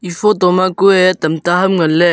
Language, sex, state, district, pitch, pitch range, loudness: Wancho, male, Arunachal Pradesh, Longding, 180 Hz, 175-190 Hz, -12 LUFS